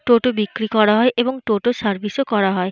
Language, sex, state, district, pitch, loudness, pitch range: Bengali, female, Jharkhand, Jamtara, 220 Hz, -18 LUFS, 210-245 Hz